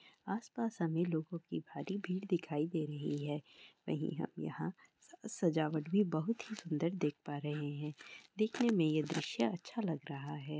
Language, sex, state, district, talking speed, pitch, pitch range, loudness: Maithili, female, Bihar, Araria, 170 wpm, 165 Hz, 150-195 Hz, -38 LUFS